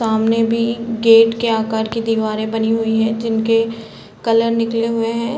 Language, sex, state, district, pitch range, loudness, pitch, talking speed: Hindi, female, Chhattisgarh, Balrampur, 225-230 Hz, -17 LUFS, 225 Hz, 180 wpm